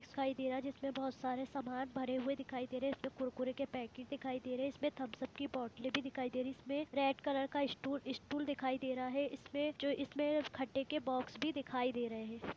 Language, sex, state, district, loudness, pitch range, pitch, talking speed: Hindi, female, Jharkhand, Jamtara, -40 LUFS, 255-280 Hz, 265 Hz, 240 wpm